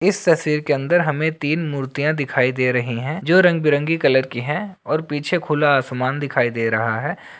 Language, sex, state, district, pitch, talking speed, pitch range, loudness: Hindi, male, Bihar, Bhagalpur, 150 Hz, 210 wpm, 130-160 Hz, -19 LUFS